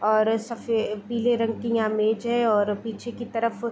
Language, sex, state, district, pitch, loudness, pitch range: Hindi, female, Bihar, Gopalganj, 230 Hz, -25 LUFS, 220-235 Hz